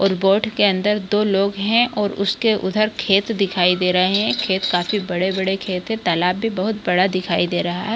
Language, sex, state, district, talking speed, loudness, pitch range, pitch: Hindi, female, Bihar, Kishanganj, 210 wpm, -19 LUFS, 185-210 Hz, 195 Hz